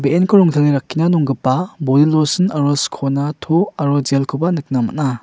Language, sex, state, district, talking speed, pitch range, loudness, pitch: Garo, male, Meghalaya, West Garo Hills, 150 wpm, 135-165 Hz, -16 LUFS, 145 Hz